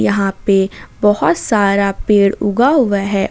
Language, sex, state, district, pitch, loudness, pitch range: Hindi, female, Jharkhand, Ranchi, 200 Hz, -14 LUFS, 195-210 Hz